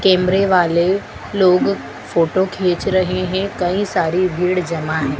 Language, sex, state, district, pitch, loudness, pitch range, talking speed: Hindi, female, Madhya Pradesh, Dhar, 185 Hz, -17 LUFS, 170-190 Hz, 140 wpm